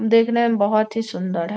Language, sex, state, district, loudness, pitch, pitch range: Hindi, female, Bihar, Gopalganj, -20 LUFS, 220 Hz, 205-230 Hz